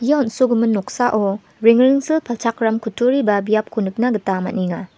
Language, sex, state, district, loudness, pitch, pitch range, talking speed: Garo, female, Meghalaya, West Garo Hills, -18 LUFS, 230 Hz, 205-245 Hz, 130 wpm